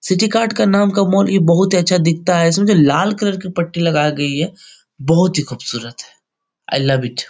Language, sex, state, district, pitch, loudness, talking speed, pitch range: Hindi, male, Bihar, Supaul, 175 Hz, -15 LUFS, 230 wpm, 150-195 Hz